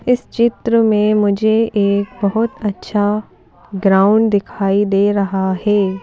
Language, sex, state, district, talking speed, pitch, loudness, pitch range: Hindi, female, Madhya Pradesh, Bhopal, 120 wpm, 205 Hz, -15 LUFS, 200-220 Hz